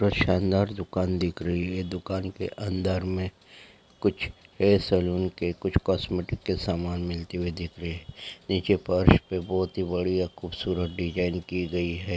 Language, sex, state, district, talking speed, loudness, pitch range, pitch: Hindi, male, Andhra Pradesh, Chittoor, 165 wpm, -27 LUFS, 90-95 Hz, 90 Hz